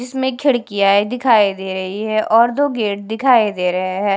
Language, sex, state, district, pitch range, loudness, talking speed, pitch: Hindi, female, Punjab, Kapurthala, 200-250 Hz, -16 LUFS, 185 wpm, 215 Hz